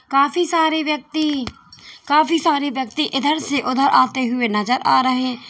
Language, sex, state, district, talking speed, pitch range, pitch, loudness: Hindi, female, Uttar Pradesh, Saharanpur, 155 wpm, 255-310 Hz, 280 Hz, -18 LUFS